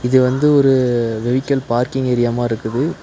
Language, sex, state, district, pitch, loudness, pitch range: Tamil, male, Tamil Nadu, Nilgiris, 125 Hz, -16 LUFS, 120-130 Hz